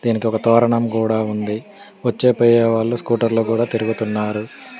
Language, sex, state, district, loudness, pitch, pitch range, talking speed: Telugu, male, Telangana, Mahabubabad, -18 LUFS, 115 Hz, 110-120 Hz, 140 wpm